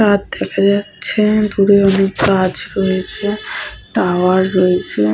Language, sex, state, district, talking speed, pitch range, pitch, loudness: Bengali, female, Jharkhand, Sahebganj, 105 wpm, 185-205 Hz, 195 Hz, -15 LUFS